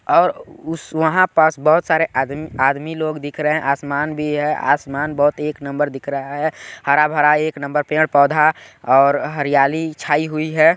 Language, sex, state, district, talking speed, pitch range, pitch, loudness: Hindi, male, Chhattisgarh, Balrampur, 175 wpm, 140-155 Hz, 150 Hz, -17 LUFS